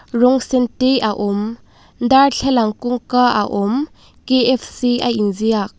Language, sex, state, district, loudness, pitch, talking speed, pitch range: Mizo, female, Mizoram, Aizawl, -16 LUFS, 245 Hz, 125 wpm, 220-255 Hz